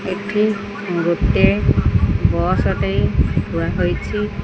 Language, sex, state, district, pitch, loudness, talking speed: Odia, female, Odisha, Khordha, 180 Hz, -18 LUFS, 80 wpm